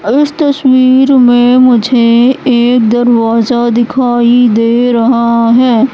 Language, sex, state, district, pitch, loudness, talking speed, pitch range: Hindi, female, Madhya Pradesh, Katni, 245 Hz, -8 LUFS, 100 wpm, 235-255 Hz